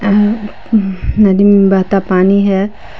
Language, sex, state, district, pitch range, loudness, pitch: Hindi, female, Jharkhand, Palamu, 195-210 Hz, -12 LUFS, 200 Hz